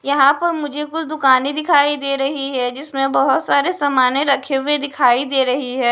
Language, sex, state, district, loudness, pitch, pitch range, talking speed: Hindi, female, Maharashtra, Mumbai Suburban, -17 LUFS, 275 Hz, 265-290 Hz, 190 wpm